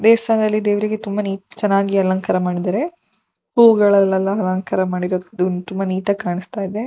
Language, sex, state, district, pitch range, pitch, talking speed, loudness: Kannada, female, Karnataka, Shimoga, 185-215 Hz, 195 Hz, 120 wpm, -18 LUFS